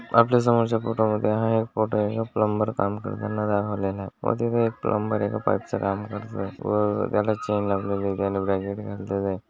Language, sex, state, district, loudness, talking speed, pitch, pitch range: Marathi, male, Maharashtra, Dhule, -25 LUFS, 140 wpm, 105 Hz, 100-110 Hz